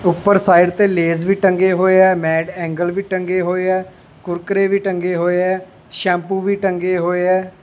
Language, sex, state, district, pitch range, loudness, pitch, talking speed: Punjabi, male, Punjab, Pathankot, 175-190 Hz, -16 LUFS, 185 Hz, 190 wpm